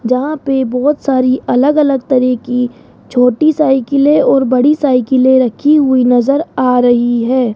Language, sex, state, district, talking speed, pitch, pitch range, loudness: Hindi, female, Rajasthan, Jaipur, 150 wpm, 260 Hz, 250-280 Hz, -12 LUFS